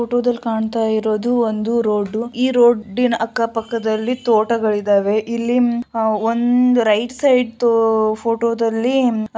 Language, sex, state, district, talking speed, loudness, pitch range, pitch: Kannada, female, Karnataka, Shimoga, 100 wpm, -17 LUFS, 220-240 Hz, 230 Hz